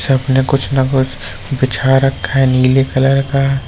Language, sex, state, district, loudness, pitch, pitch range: Hindi, male, Uttar Pradesh, Lucknow, -14 LUFS, 135 Hz, 130-135 Hz